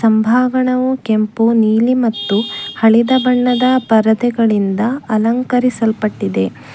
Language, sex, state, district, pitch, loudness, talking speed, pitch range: Kannada, female, Karnataka, Bangalore, 230 Hz, -14 LUFS, 70 wpm, 220-250 Hz